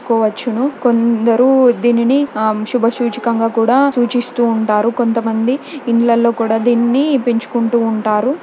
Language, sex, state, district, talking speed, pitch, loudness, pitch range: Telugu, female, Telangana, Nalgonda, 95 wpm, 235 Hz, -14 LUFS, 230-250 Hz